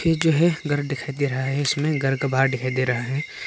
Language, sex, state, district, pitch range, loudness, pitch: Hindi, male, Arunachal Pradesh, Papum Pare, 135-150 Hz, -22 LUFS, 140 Hz